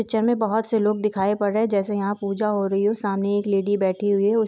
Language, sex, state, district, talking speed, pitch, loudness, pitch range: Hindi, female, Jharkhand, Jamtara, 280 wpm, 205 Hz, -22 LUFS, 200-215 Hz